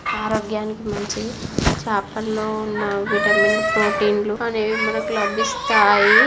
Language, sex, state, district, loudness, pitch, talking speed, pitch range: Telugu, female, Andhra Pradesh, Srikakulam, -20 LUFS, 215 Hz, 85 wpm, 210-215 Hz